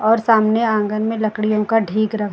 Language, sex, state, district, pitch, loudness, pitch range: Hindi, female, Maharashtra, Gondia, 215 Hz, -17 LUFS, 215-225 Hz